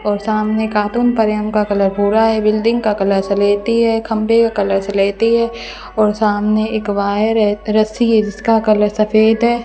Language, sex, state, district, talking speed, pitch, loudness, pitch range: Hindi, female, Rajasthan, Bikaner, 195 wpm, 215 Hz, -15 LUFS, 205-225 Hz